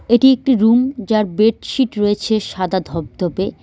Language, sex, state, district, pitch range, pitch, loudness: Bengali, female, West Bengal, Cooch Behar, 190-240 Hz, 215 Hz, -16 LUFS